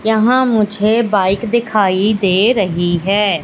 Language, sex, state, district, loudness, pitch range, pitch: Hindi, female, Madhya Pradesh, Katni, -14 LUFS, 190-220 Hz, 205 Hz